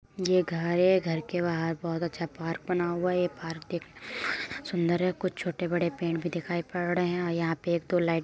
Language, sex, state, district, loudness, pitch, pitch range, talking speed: Hindi, female, Uttar Pradesh, Jyotiba Phule Nagar, -29 LUFS, 175 Hz, 165-180 Hz, 260 wpm